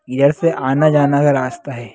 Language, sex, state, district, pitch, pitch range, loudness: Hindi, male, Bihar, Sitamarhi, 140 Hz, 130-150 Hz, -15 LUFS